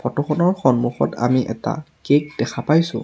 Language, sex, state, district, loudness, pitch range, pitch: Assamese, male, Assam, Sonitpur, -20 LUFS, 120-155 Hz, 130 Hz